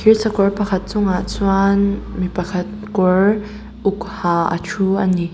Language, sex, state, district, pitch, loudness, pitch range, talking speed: Mizo, female, Mizoram, Aizawl, 195 Hz, -18 LUFS, 185-205 Hz, 135 wpm